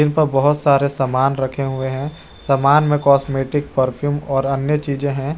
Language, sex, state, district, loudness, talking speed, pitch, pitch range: Hindi, male, Jharkhand, Garhwa, -17 LUFS, 165 wpm, 140 Hz, 135-145 Hz